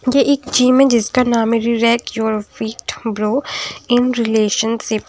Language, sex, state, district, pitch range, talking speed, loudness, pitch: Hindi, female, Punjab, Kapurthala, 220-250 Hz, 155 wpm, -16 LUFS, 230 Hz